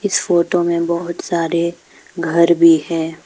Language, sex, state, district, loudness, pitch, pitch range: Hindi, female, Arunachal Pradesh, Papum Pare, -16 LUFS, 170 Hz, 165-175 Hz